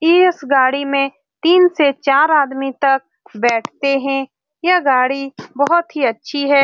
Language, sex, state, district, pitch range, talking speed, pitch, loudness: Hindi, female, Bihar, Saran, 270-300 Hz, 145 wpm, 275 Hz, -16 LUFS